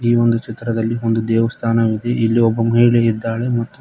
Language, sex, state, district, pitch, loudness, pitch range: Kannada, male, Karnataka, Koppal, 115 Hz, -17 LUFS, 115-120 Hz